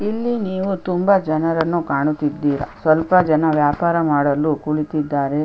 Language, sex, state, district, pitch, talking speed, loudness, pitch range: Kannada, female, Karnataka, Chamarajanagar, 155 Hz, 120 wpm, -18 LUFS, 150-180 Hz